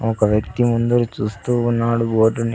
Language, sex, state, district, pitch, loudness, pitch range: Telugu, male, Andhra Pradesh, Sri Satya Sai, 115 Hz, -19 LUFS, 110-120 Hz